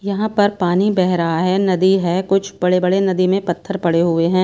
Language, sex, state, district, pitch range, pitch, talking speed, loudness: Hindi, female, Himachal Pradesh, Shimla, 175-195 Hz, 185 Hz, 230 wpm, -17 LUFS